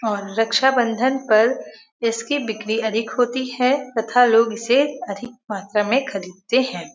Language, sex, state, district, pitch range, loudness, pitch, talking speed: Hindi, female, Uttar Pradesh, Varanasi, 220-260 Hz, -20 LUFS, 230 Hz, 140 wpm